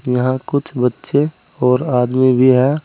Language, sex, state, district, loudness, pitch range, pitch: Hindi, male, Uttar Pradesh, Saharanpur, -16 LUFS, 125-140 Hz, 130 Hz